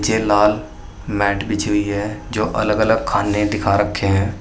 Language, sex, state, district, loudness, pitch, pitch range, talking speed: Hindi, male, Uttar Pradesh, Saharanpur, -18 LUFS, 105 Hz, 100-105 Hz, 175 wpm